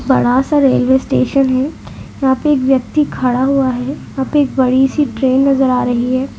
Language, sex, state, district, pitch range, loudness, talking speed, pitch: Hindi, female, Uttar Pradesh, Deoria, 255-275 Hz, -14 LUFS, 205 wpm, 265 Hz